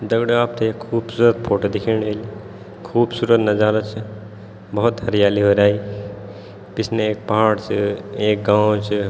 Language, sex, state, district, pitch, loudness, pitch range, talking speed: Garhwali, male, Uttarakhand, Tehri Garhwal, 105 Hz, -19 LUFS, 100-115 Hz, 140 wpm